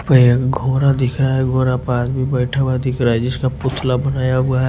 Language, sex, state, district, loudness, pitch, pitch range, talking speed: Hindi, male, Punjab, Kapurthala, -17 LUFS, 130 Hz, 125-130 Hz, 215 wpm